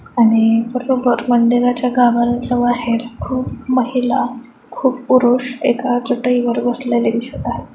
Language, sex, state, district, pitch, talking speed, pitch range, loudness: Marathi, female, Maharashtra, Chandrapur, 245 Hz, 115 wpm, 240-250 Hz, -16 LUFS